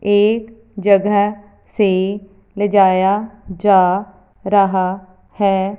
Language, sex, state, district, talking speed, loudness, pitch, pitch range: Hindi, female, Punjab, Fazilka, 85 wpm, -16 LUFS, 200 Hz, 190-205 Hz